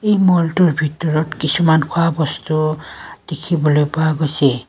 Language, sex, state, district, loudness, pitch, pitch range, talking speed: Assamese, female, Assam, Kamrup Metropolitan, -16 LUFS, 155 Hz, 155-170 Hz, 115 wpm